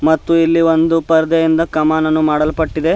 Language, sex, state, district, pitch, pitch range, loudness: Kannada, male, Karnataka, Bidar, 160 Hz, 155-165 Hz, -14 LUFS